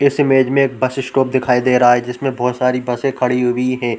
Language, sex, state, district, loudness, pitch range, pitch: Hindi, male, Chhattisgarh, Korba, -16 LUFS, 125-135 Hz, 125 Hz